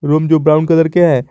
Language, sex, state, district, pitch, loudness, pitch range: Hindi, male, Jharkhand, Garhwa, 155 Hz, -12 LUFS, 155-165 Hz